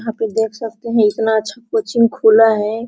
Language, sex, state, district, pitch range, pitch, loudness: Hindi, female, Jharkhand, Sahebganj, 220-230 Hz, 225 Hz, -15 LUFS